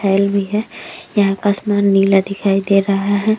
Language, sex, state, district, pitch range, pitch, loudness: Hindi, female, Uttar Pradesh, Jyotiba Phule Nagar, 195-205 Hz, 200 Hz, -16 LUFS